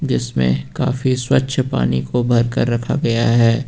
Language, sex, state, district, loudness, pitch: Hindi, male, Uttar Pradesh, Lucknow, -17 LUFS, 120 Hz